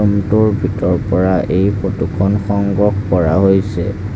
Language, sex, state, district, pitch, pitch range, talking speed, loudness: Assamese, male, Assam, Sonitpur, 100 Hz, 90-100 Hz, 145 wpm, -15 LUFS